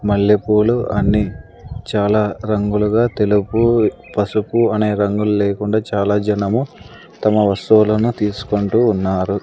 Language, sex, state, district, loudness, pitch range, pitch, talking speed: Telugu, male, Andhra Pradesh, Sri Satya Sai, -16 LUFS, 100-110 Hz, 105 Hz, 90 wpm